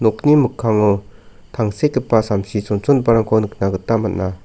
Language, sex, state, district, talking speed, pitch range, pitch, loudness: Garo, male, Meghalaya, South Garo Hills, 110 wpm, 100-115 Hz, 110 Hz, -17 LUFS